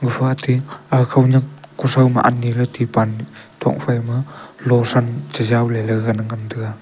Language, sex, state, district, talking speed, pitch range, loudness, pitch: Wancho, male, Arunachal Pradesh, Longding, 130 wpm, 115-130 Hz, -18 LUFS, 125 Hz